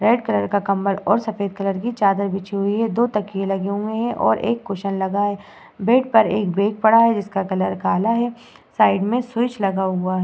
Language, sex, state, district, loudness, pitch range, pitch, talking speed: Hindi, female, Uttar Pradesh, Muzaffarnagar, -20 LUFS, 195-225 Hz, 205 Hz, 230 wpm